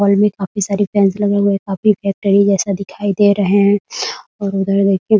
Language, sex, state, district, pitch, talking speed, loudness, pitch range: Hindi, female, Bihar, Muzaffarpur, 200 Hz, 220 wpm, -15 LUFS, 195-205 Hz